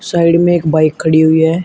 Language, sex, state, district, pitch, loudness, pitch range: Hindi, male, Uttar Pradesh, Shamli, 160 Hz, -11 LUFS, 160-170 Hz